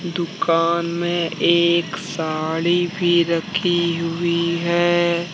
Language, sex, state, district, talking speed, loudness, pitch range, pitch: Hindi, male, Jharkhand, Deoghar, 90 wpm, -19 LUFS, 170-175 Hz, 170 Hz